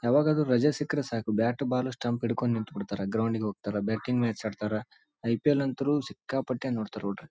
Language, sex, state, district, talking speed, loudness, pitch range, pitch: Kannada, male, Karnataka, Raichur, 165 wpm, -29 LUFS, 110-135 Hz, 120 Hz